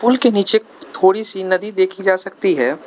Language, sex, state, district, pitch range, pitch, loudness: Hindi, male, Arunachal Pradesh, Lower Dibang Valley, 190-225 Hz, 200 Hz, -16 LUFS